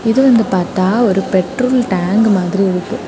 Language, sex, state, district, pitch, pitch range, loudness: Tamil, female, Tamil Nadu, Kanyakumari, 195 Hz, 185-240 Hz, -14 LUFS